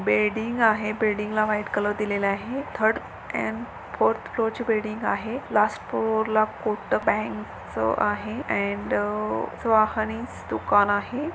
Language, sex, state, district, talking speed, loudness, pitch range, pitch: Marathi, female, Maharashtra, Sindhudurg, 120 wpm, -25 LUFS, 205-225 Hz, 215 Hz